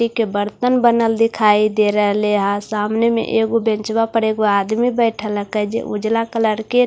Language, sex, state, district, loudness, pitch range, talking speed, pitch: Hindi, female, Bihar, Katihar, -17 LUFS, 210-230 Hz, 210 wpm, 220 Hz